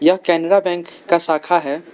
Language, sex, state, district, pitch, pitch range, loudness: Hindi, male, Arunachal Pradesh, Lower Dibang Valley, 170 Hz, 165-175 Hz, -17 LUFS